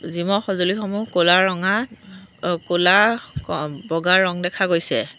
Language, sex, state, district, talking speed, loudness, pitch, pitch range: Assamese, female, Assam, Sonitpur, 105 wpm, -19 LUFS, 185 Hz, 175-200 Hz